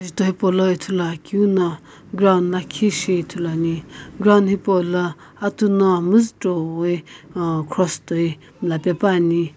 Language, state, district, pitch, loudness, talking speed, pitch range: Sumi, Nagaland, Kohima, 180 Hz, -19 LUFS, 115 wpm, 170-195 Hz